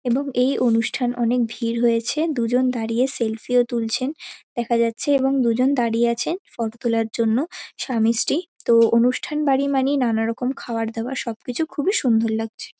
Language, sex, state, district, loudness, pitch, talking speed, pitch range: Bengali, female, West Bengal, Kolkata, -21 LUFS, 245 Hz, 165 wpm, 230-270 Hz